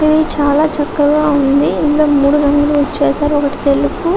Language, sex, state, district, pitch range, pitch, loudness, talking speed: Telugu, female, Telangana, Karimnagar, 285-305 Hz, 295 Hz, -13 LUFS, 145 wpm